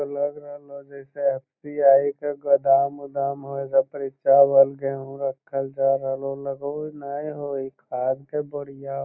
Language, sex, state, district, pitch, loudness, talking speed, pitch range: Magahi, male, Bihar, Lakhisarai, 140 Hz, -23 LUFS, 180 wpm, 135-145 Hz